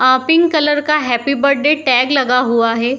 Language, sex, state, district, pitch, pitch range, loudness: Hindi, female, Bihar, Saharsa, 270 Hz, 250-295 Hz, -13 LUFS